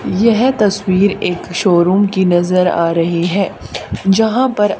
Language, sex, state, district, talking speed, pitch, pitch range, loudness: Hindi, female, Haryana, Charkhi Dadri, 140 wpm, 195 Hz, 175-210 Hz, -14 LUFS